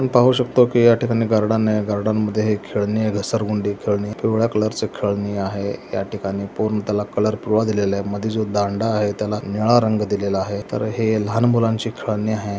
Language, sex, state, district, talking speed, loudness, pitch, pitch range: Marathi, male, Maharashtra, Solapur, 195 wpm, -20 LUFS, 105 Hz, 100-110 Hz